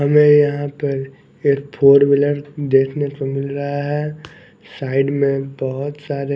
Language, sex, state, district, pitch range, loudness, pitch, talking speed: Hindi, male, Bihar, West Champaran, 135-145 Hz, -18 LUFS, 140 Hz, 150 wpm